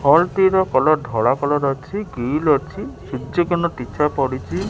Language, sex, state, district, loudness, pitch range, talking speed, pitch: Odia, male, Odisha, Khordha, -19 LUFS, 135-175 Hz, 155 wpm, 150 Hz